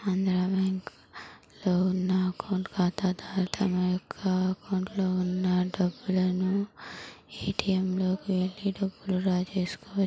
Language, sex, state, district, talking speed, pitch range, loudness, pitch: Telugu, female, Andhra Pradesh, Chittoor, 95 wpm, 185-190 Hz, -29 LUFS, 185 Hz